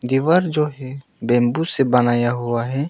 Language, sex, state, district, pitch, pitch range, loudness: Hindi, male, Arunachal Pradesh, Longding, 130 Hz, 120-145 Hz, -19 LUFS